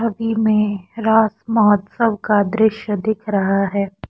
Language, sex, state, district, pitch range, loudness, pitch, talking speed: Hindi, female, Assam, Kamrup Metropolitan, 200-220 Hz, -17 LUFS, 215 Hz, 130 wpm